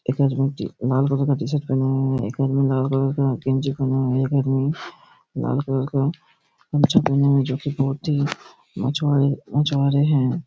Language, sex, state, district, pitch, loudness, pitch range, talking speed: Hindi, male, Chhattisgarh, Raigarh, 135 Hz, -21 LUFS, 135-140 Hz, 165 wpm